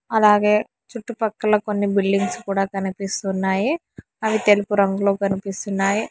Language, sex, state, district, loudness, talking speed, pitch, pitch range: Telugu, male, Telangana, Hyderabad, -20 LUFS, 100 wpm, 200 Hz, 195-215 Hz